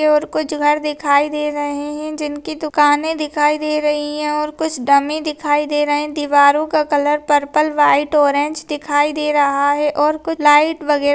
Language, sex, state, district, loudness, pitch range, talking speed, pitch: Hindi, female, Rajasthan, Nagaur, -16 LUFS, 290-305 Hz, 190 wpm, 295 Hz